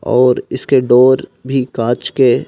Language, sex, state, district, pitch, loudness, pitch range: Hindi, male, Madhya Pradesh, Bhopal, 125 Hz, -13 LUFS, 120-130 Hz